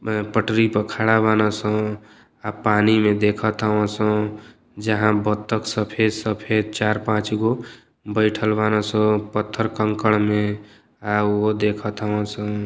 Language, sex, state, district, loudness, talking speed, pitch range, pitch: Bhojpuri, male, Uttar Pradesh, Deoria, -21 LUFS, 140 wpm, 105-110 Hz, 105 Hz